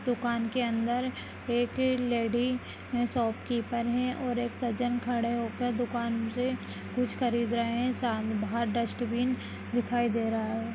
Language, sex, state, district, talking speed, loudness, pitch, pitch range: Hindi, female, Rajasthan, Nagaur, 135 wpm, -30 LUFS, 240 Hz, 235-245 Hz